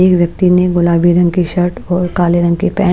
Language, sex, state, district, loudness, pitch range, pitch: Hindi, female, Maharashtra, Washim, -12 LUFS, 175-180 Hz, 180 Hz